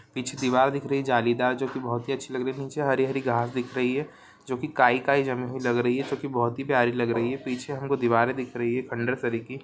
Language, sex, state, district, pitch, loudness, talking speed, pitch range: Hindi, male, Chhattisgarh, Rajnandgaon, 130 Hz, -26 LUFS, 275 wpm, 120-135 Hz